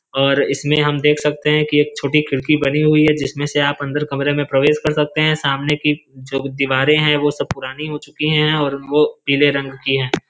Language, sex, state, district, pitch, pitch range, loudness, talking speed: Hindi, male, Uttar Pradesh, Varanasi, 145 Hz, 140-150 Hz, -17 LUFS, 225 wpm